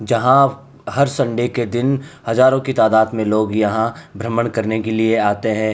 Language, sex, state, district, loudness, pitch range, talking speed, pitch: Hindi, male, Uttar Pradesh, Hamirpur, -17 LUFS, 110-135 Hz, 175 wpm, 115 Hz